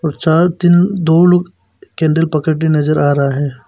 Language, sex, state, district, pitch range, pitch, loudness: Hindi, male, Arunachal Pradesh, Papum Pare, 150-175 Hz, 160 Hz, -13 LUFS